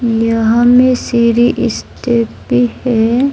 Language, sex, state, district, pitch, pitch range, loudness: Hindi, female, Arunachal Pradesh, Lower Dibang Valley, 235 Hz, 230-245 Hz, -12 LUFS